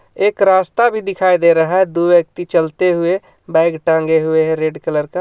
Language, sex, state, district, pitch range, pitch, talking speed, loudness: Hindi, male, Jharkhand, Ranchi, 160-185 Hz, 170 Hz, 205 wpm, -15 LUFS